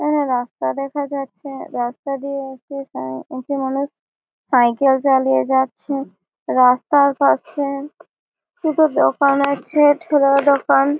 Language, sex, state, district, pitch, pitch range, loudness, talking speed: Bengali, female, West Bengal, Malda, 275 Hz, 260-285 Hz, -18 LUFS, 110 wpm